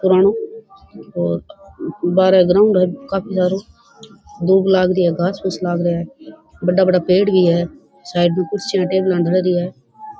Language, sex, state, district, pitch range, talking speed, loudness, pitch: Rajasthani, female, Rajasthan, Churu, 175-195 Hz, 155 wpm, -17 LUFS, 185 Hz